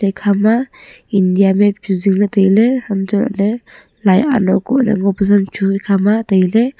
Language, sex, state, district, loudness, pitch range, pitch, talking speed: Wancho, female, Arunachal Pradesh, Longding, -14 LUFS, 195-225 Hz, 200 Hz, 220 wpm